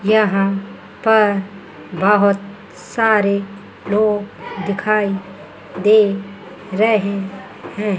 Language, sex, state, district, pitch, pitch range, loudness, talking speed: Hindi, female, Chandigarh, Chandigarh, 200 Hz, 195-210 Hz, -17 LUFS, 65 wpm